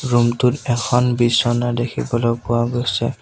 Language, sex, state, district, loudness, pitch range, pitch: Assamese, male, Assam, Sonitpur, -18 LUFS, 120-125 Hz, 120 Hz